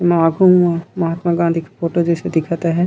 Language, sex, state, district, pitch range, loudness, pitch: Chhattisgarhi, male, Chhattisgarh, Raigarh, 165-175 Hz, -16 LUFS, 170 Hz